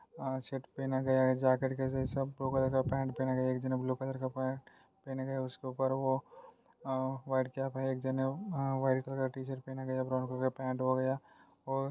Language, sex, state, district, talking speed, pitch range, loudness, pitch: Hindi, male, Maharashtra, Solapur, 225 wpm, 130-135 Hz, -35 LUFS, 130 Hz